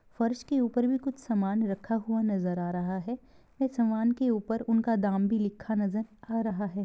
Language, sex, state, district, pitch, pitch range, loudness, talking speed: Hindi, female, Bihar, Begusarai, 225 Hz, 205-235 Hz, -30 LUFS, 220 wpm